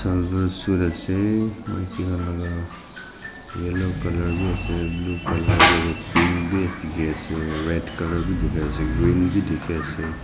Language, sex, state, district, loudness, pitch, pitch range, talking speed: Nagamese, male, Nagaland, Dimapur, -23 LUFS, 85 Hz, 80-95 Hz, 110 wpm